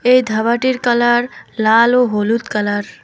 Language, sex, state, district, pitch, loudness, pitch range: Bengali, female, West Bengal, Alipurduar, 235 Hz, -15 LUFS, 220-245 Hz